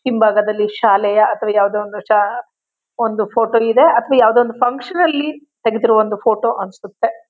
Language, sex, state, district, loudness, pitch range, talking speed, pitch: Kannada, female, Karnataka, Chamarajanagar, -15 LUFS, 210-240 Hz, 150 wpm, 225 Hz